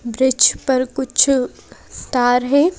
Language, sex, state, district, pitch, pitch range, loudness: Hindi, female, Madhya Pradesh, Bhopal, 260 Hz, 250-275 Hz, -16 LUFS